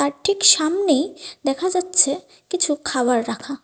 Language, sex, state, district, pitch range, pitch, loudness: Bengali, female, Tripura, West Tripura, 280-365 Hz, 310 Hz, -18 LUFS